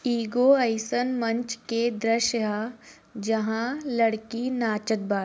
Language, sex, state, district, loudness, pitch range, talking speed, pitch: Bhojpuri, female, Bihar, Gopalganj, -26 LUFS, 220-245 Hz, 115 wpm, 230 Hz